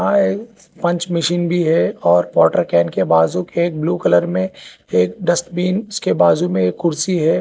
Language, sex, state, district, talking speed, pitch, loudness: Hindi, male, Telangana, Hyderabad, 195 wpm, 160 Hz, -17 LUFS